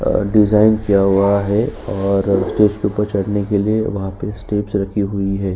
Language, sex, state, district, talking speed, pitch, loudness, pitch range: Hindi, male, Uttar Pradesh, Jyotiba Phule Nagar, 130 wpm, 100 Hz, -17 LUFS, 100-105 Hz